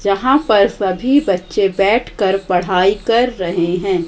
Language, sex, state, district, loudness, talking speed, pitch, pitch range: Hindi, female, Madhya Pradesh, Katni, -15 LUFS, 130 wpm, 195 Hz, 185-220 Hz